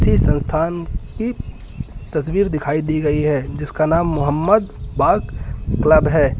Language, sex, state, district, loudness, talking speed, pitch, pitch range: Hindi, male, Uttar Pradesh, Lucknow, -18 LUFS, 130 wpm, 155 Hz, 145-165 Hz